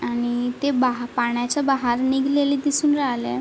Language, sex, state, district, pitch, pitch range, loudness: Marathi, female, Maharashtra, Chandrapur, 255 Hz, 240-280 Hz, -21 LUFS